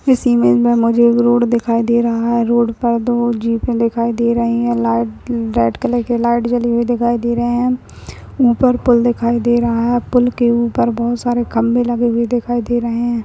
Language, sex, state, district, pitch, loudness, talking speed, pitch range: Hindi, female, Maharashtra, Aurangabad, 235 Hz, -15 LUFS, 215 wpm, 235-240 Hz